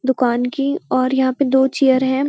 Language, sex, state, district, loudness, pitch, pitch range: Hindi, female, Uttarakhand, Uttarkashi, -17 LUFS, 260 Hz, 260-275 Hz